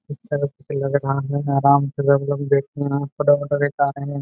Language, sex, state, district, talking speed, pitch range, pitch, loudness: Hindi, male, Jharkhand, Jamtara, 85 wpm, 140-145 Hz, 140 Hz, -20 LUFS